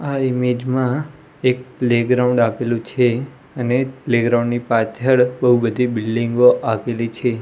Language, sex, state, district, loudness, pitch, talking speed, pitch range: Gujarati, male, Gujarat, Gandhinagar, -18 LUFS, 125 Hz, 130 wpm, 120-125 Hz